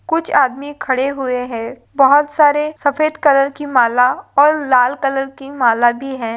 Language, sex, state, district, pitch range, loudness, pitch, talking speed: Hindi, female, Maharashtra, Pune, 250-290 Hz, -15 LUFS, 275 Hz, 170 wpm